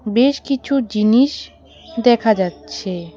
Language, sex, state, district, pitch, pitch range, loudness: Bengali, female, West Bengal, Alipurduar, 225 Hz, 190-265 Hz, -17 LUFS